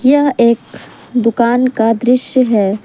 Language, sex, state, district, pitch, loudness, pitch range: Hindi, female, Jharkhand, Ranchi, 240 Hz, -13 LUFS, 230-255 Hz